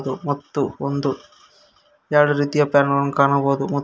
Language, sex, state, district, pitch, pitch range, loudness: Kannada, male, Karnataka, Koppal, 140 Hz, 140-145 Hz, -19 LUFS